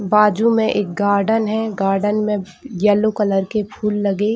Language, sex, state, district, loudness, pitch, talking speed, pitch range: Hindi, female, Chhattisgarh, Bilaspur, -18 LUFS, 210 Hz, 165 wpm, 200-215 Hz